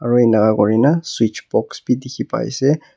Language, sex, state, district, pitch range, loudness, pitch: Nagamese, male, Nagaland, Kohima, 110-135 Hz, -17 LUFS, 120 Hz